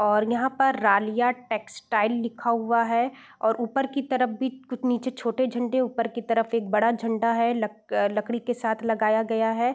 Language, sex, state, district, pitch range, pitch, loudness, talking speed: Hindi, female, Uttar Pradesh, Varanasi, 225-245 Hz, 230 Hz, -25 LUFS, 180 wpm